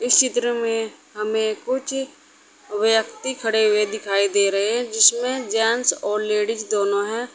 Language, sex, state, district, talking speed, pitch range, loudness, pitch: Hindi, female, Uttar Pradesh, Saharanpur, 145 wpm, 210-240 Hz, -20 LUFS, 225 Hz